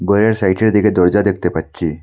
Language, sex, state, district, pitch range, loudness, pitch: Bengali, male, Assam, Hailakandi, 90-105 Hz, -15 LUFS, 95 Hz